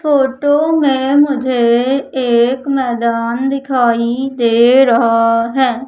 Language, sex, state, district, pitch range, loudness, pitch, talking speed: Hindi, female, Madhya Pradesh, Umaria, 235-275 Hz, -13 LUFS, 255 Hz, 90 wpm